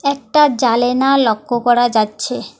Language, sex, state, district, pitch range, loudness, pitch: Bengali, female, West Bengal, Alipurduar, 235-275 Hz, -15 LUFS, 245 Hz